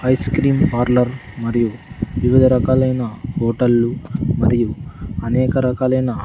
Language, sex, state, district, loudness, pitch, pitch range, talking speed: Telugu, male, Andhra Pradesh, Sri Satya Sai, -17 LUFS, 125 Hz, 115-130 Hz, 95 wpm